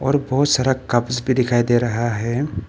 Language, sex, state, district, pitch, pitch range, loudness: Hindi, male, Arunachal Pradesh, Papum Pare, 125 Hz, 120-135 Hz, -19 LUFS